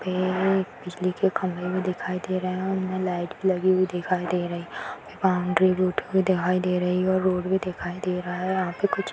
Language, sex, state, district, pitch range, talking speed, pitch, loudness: Hindi, female, Bihar, Madhepura, 180-185 Hz, 235 wpm, 185 Hz, -25 LUFS